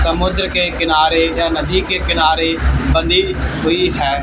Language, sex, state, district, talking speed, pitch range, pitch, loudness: Hindi, male, Haryana, Charkhi Dadri, 140 wpm, 165-190 Hz, 170 Hz, -14 LUFS